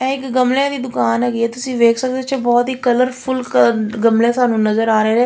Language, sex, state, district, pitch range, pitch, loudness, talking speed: Punjabi, female, Punjab, Fazilka, 230-255 Hz, 245 Hz, -16 LUFS, 260 wpm